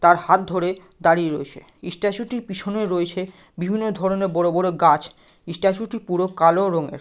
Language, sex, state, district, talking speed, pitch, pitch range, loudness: Bengali, male, West Bengal, Malda, 170 wpm, 185 Hz, 175-195 Hz, -21 LUFS